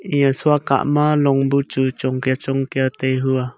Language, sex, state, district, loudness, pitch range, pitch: Wancho, male, Arunachal Pradesh, Longding, -18 LUFS, 130-140 Hz, 135 Hz